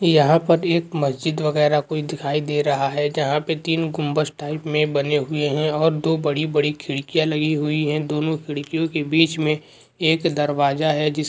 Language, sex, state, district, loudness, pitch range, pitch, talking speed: Hindi, male, Andhra Pradesh, Krishna, -21 LUFS, 150-160 Hz, 150 Hz, 195 wpm